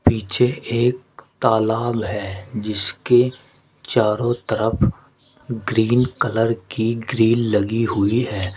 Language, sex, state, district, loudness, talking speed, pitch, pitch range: Hindi, male, Uttar Pradesh, Shamli, -20 LUFS, 100 wpm, 115 Hz, 110-120 Hz